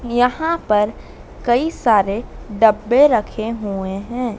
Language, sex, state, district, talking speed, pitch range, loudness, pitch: Hindi, female, Madhya Pradesh, Dhar, 110 wpm, 210-245 Hz, -18 LUFS, 225 Hz